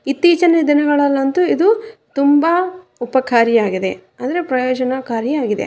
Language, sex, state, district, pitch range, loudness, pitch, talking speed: Kannada, female, Karnataka, Raichur, 255-345 Hz, -16 LUFS, 280 Hz, 75 wpm